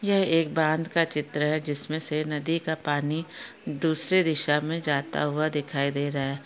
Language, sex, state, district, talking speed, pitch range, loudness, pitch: Hindi, female, Maharashtra, Pune, 195 wpm, 150-160 Hz, -24 LUFS, 155 Hz